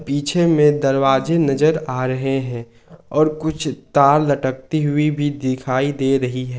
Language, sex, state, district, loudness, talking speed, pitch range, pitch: Hindi, male, Jharkhand, Ranchi, -18 LUFS, 155 wpm, 130-155 Hz, 140 Hz